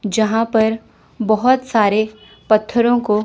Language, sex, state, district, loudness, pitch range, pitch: Hindi, female, Chandigarh, Chandigarh, -16 LUFS, 215-230 Hz, 220 Hz